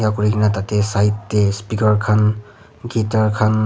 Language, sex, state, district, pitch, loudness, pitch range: Nagamese, male, Nagaland, Kohima, 105 Hz, -18 LUFS, 105-110 Hz